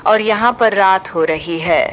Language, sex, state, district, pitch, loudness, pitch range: Hindi, female, Uttar Pradesh, Shamli, 210 Hz, -14 LUFS, 170-230 Hz